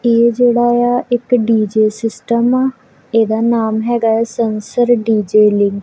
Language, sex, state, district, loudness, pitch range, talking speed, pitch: Punjabi, female, Punjab, Kapurthala, -14 LUFS, 220-240 Hz, 145 wpm, 230 Hz